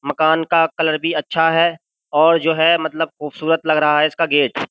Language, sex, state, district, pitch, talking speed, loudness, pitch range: Hindi, male, Uttar Pradesh, Jyotiba Phule Nagar, 160 Hz, 215 wpm, -16 LUFS, 155-165 Hz